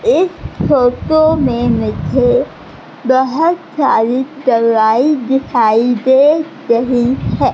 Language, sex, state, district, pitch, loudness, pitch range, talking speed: Hindi, female, Madhya Pradesh, Katni, 260 Hz, -13 LUFS, 240-310 Hz, 85 wpm